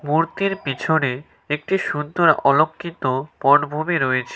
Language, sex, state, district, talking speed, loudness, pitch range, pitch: Bengali, male, West Bengal, Cooch Behar, 95 wpm, -20 LUFS, 140-170 Hz, 150 Hz